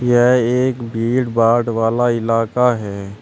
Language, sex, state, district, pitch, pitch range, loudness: Hindi, male, Uttar Pradesh, Shamli, 120 Hz, 115-125 Hz, -16 LUFS